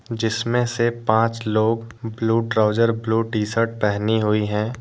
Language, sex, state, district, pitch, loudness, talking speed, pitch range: Hindi, male, Jharkhand, Deoghar, 115 Hz, -21 LUFS, 150 wpm, 110-115 Hz